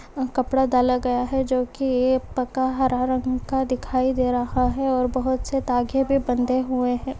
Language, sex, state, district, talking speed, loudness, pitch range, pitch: Hindi, female, Chhattisgarh, Bastar, 185 wpm, -22 LUFS, 250-265 Hz, 255 Hz